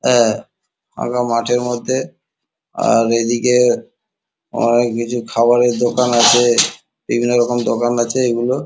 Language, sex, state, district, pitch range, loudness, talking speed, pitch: Bengali, male, West Bengal, Kolkata, 120-125 Hz, -15 LUFS, 120 wpm, 120 Hz